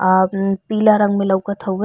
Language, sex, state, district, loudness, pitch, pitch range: Bhojpuri, female, Uttar Pradesh, Ghazipur, -17 LUFS, 195 Hz, 190-205 Hz